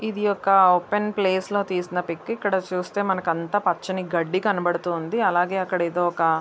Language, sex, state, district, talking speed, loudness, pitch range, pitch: Telugu, female, Andhra Pradesh, Visakhapatnam, 160 wpm, -23 LUFS, 175-205 Hz, 185 Hz